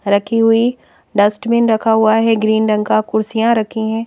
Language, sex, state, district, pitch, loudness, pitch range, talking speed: Hindi, female, Madhya Pradesh, Bhopal, 220 Hz, -14 LUFS, 215-225 Hz, 175 wpm